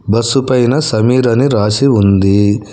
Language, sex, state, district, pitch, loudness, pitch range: Telugu, male, Telangana, Hyderabad, 115 Hz, -11 LUFS, 105-130 Hz